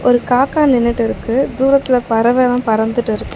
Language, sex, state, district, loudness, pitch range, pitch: Tamil, female, Tamil Nadu, Chennai, -14 LUFS, 230-260 Hz, 245 Hz